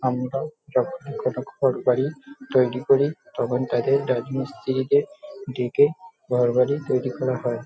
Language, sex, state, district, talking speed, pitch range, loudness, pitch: Bengali, male, West Bengal, North 24 Parganas, 135 wpm, 125-150 Hz, -23 LUFS, 135 Hz